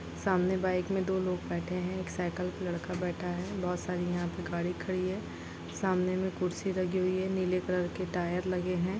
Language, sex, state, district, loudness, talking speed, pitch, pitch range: Hindi, female, Chhattisgarh, Kabirdham, -33 LUFS, 215 wpm, 180 Hz, 180-185 Hz